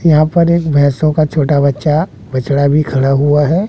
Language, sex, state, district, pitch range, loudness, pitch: Hindi, male, Bihar, West Champaran, 140-155 Hz, -12 LUFS, 150 Hz